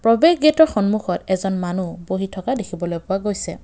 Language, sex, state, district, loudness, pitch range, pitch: Assamese, male, Assam, Kamrup Metropolitan, -20 LUFS, 180-225 Hz, 195 Hz